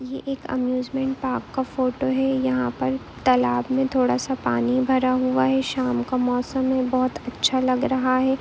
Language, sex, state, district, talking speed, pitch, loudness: Hindi, female, Jharkhand, Jamtara, 185 wpm, 255 Hz, -23 LUFS